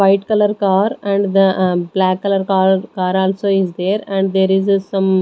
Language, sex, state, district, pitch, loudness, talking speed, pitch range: English, female, Maharashtra, Gondia, 195 Hz, -16 LUFS, 220 wpm, 190-200 Hz